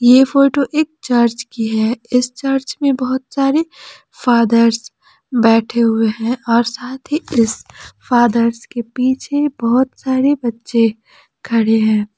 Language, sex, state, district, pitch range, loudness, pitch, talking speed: Hindi, female, Jharkhand, Palamu, 230-265 Hz, -16 LUFS, 240 Hz, 135 wpm